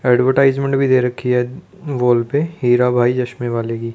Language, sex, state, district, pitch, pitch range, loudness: Hindi, male, Chandigarh, Chandigarh, 125 Hz, 120-135 Hz, -17 LUFS